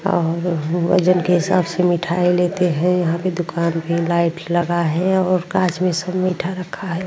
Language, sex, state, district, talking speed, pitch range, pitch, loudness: Hindi, female, Uttar Pradesh, Muzaffarnagar, 185 wpm, 170-185 Hz, 180 Hz, -19 LUFS